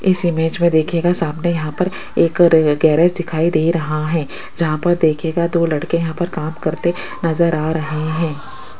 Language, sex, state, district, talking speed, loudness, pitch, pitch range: Hindi, female, Rajasthan, Jaipur, 185 wpm, -17 LUFS, 165 Hz, 155-170 Hz